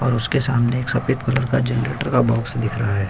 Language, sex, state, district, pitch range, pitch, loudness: Hindi, male, Uttar Pradesh, Hamirpur, 115-130 Hz, 125 Hz, -20 LUFS